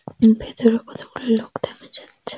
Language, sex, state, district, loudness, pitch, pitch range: Bengali, female, West Bengal, Jalpaiguri, -20 LUFS, 225 Hz, 225-230 Hz